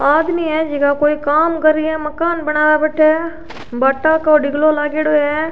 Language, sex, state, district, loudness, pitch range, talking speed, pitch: Rajasthani, female, Rajasthan, Churu, -15 LUFS, 295-315 Hz, 175 wpm, 310 Hz